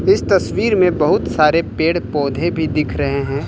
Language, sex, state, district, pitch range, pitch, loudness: Hindi, male, Uttar Pradesh, Lucknow, 140-170 Hz, 155 Hz, -16 LUFS